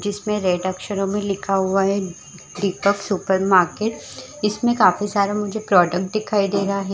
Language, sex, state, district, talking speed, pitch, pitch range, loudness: Chhattisgarhi, female, Chhattisgarh, Jashpur, 165 wpm, 200 Hz, 190-205 Hz, -20 LUFS